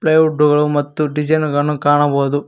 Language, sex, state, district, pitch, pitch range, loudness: Kannada, male, Karnataka, Koppal, 150 Hz, 145-155 Hz, -15 LUFS